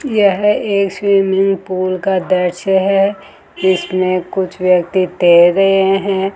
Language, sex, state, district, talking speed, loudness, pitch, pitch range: Hindi, female, Rajasthan, Jaipur, 120 wpm, -14 LUFS, 190 Hz, 185-195 Hz